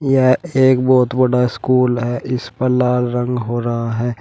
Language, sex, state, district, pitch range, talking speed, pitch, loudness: Hindi, male, Uttar Pradesh, Shamli, 120-130 Hz, 185 wpm, 125 Hz, -16 LUFS